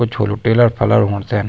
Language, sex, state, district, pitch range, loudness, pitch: Garhwali, male, Uttarakhand, Tehri Garhwal, 105-120 Hz, -15 LUFS, 105 Hz